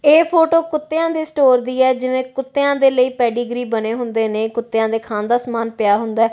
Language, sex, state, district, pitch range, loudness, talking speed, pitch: Punjabi, female, Punjab, Kapurthala, 225-280 Hz, -17 LUFS, 220 wpm, 250 Hz